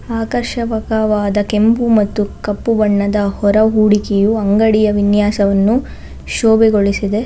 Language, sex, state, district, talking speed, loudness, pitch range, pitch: Kannada, female, Karnataka, Bangalore, 75 wpm, -14 LUFS, 205-220 Hz, 210 Hz